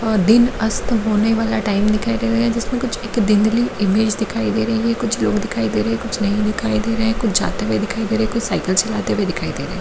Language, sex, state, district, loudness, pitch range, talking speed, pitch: Hindi, female, Jharkhand, Jamtara, -18 LUFS, 210-230 Hz, 275 wpm, 220 Hz